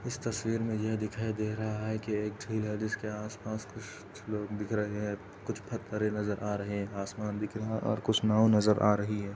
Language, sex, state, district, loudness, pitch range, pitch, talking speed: Hindi, male, Uttar Pradesh, Etah, -32 LUFS, 105-110 Hz, 105 Hz, 225 wpm